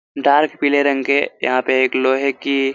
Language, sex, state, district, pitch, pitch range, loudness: Hindi, male, Chhattisgarh, Korba, 140 Hz, 130-140 Hz, -17 LUFS